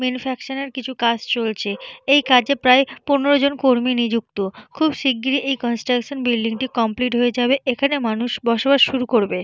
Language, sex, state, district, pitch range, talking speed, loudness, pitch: Bengali, female, Jharkhand, Jamtara, 235-270 Hz, 145 wpm, -19 LUFS, 250 Hz